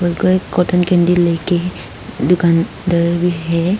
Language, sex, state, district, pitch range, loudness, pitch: Hindi, female, Arunachal Pradesh, Papum Pare, 170-180 Hz, -15 LUFS, 175 Hz